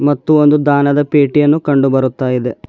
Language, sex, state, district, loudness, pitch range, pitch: Kannada, male, Karnataka, Bidar, -12 LUFS, 130-145 Hz, 145 Hz